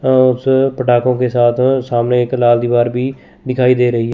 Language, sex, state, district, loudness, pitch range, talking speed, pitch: Hindi, male, Chandigarh, Chandigarh, -14 LUFS, 120-130 Hz, 205 wpm, 125 Hz